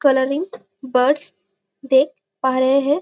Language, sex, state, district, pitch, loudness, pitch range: Hindi, female, Chhattisgarh, Bastar, 265 Hz, -19 LUFS, 250-280 Hz